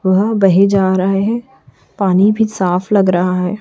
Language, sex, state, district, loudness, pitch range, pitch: Hindi, female, Chhattisgarh, Raipur, -14 LUFS, 185-205 Hz, 195 Hz